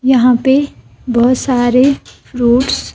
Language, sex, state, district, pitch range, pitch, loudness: Hindi, female, Himachal Pradesh, Shimla, 245-265 Hz, 255 Hz, -12 LUFS